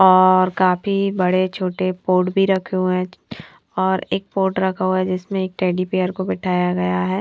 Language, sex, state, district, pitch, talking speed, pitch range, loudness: Hindi, female, Himachal Pradesh, Shimla, 185 Hz, 190 wpm, 185-190 Hz, -19 LUFS